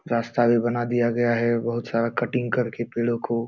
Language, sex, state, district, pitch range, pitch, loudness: Hindi, male, Bihar, Jamui, 115-120 Hz, 120 Hz, -24 LUFS